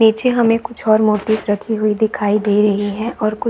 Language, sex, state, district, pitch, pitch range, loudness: Hindi, female, Chhattisgarh, Bastar, 215 Hz, 210-225 Hz, -16 LUFS